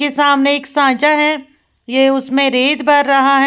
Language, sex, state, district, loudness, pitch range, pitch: Hindi, female, Uttar Pradesh, Lalitpur, -12 LUFS, 270-290 Hz, 280 Hz